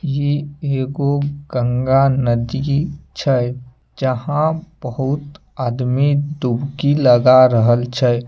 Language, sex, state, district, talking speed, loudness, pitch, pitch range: Maithili, male, Bihar, Samastipur, 85 wpm, -17 LUFS, 135 Hz, 125-145 Hz